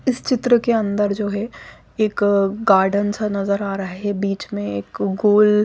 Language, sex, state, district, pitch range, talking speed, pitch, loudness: Hindi, female, Chandigarh, Chandigarh, 195-215 Hz, 190 wpm, 205 Hz, -19 LUFS